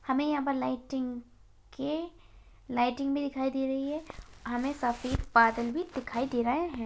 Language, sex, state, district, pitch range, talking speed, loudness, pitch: Hindi, female, Bihar, Begusarai, 245-285 Hz, 185 wpm, -31 LUFS, 265 Hz